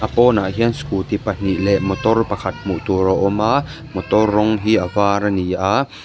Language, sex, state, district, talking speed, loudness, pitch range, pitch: Mizo, male, Mizoram, Aizawl, 200 wpm, -18 LUFS, 95-110 Hz, 105 Hz